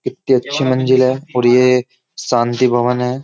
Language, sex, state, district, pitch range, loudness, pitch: Hindi, male, Uttar Pradesh, Jyotiba Phule Nagar, 125-130 Hz, -15 LUFS, 125 Hz